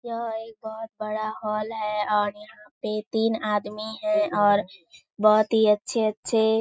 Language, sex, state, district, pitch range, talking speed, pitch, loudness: Hindi, female, Bihar, Kishanganj, 210-225 Hz, 145 wpm, 215 Hz, -25 LUFS